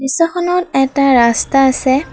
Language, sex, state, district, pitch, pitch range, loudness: Assamese, female, Assam, Kamrup Metropolitan, 270 Hz, 265-335 Hz, -13 LUFS